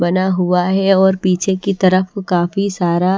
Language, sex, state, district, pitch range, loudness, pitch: Hindi, female, Haryana, Rohtak, 180-195 Hz, -15 LUFS, 185 Hz